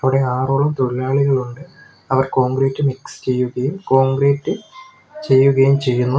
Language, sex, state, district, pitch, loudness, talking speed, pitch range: Malayalam, male, Kerala, Kollam, 135 Hz, -17 LUFS, 95 wpm, 130-140 Hz